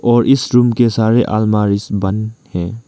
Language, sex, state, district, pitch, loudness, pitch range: Hindi, male, Arunachal Pradesh, Lower Dibang Valley, 110 Hz, -14 LUFS, 105-120 Hz